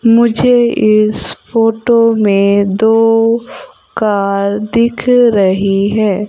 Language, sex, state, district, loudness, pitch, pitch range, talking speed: Hindi, female, Madhya Pradesh, Umaria, -11 LUFS, 220 Hz, 200-230 Hz, 85 wpm